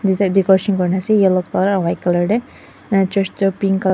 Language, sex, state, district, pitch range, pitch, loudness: Nagamese, female, Nagaland, Dimapur, 185-195 Hz, 195 Hz, -16 LUFS